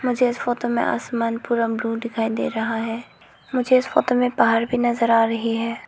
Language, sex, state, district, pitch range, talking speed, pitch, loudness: Hindi, female, Arunachal Pradesh, Lower Dibang Valley, 230-245 Hz, 215 wpm, 235 Hz, -21 LUFS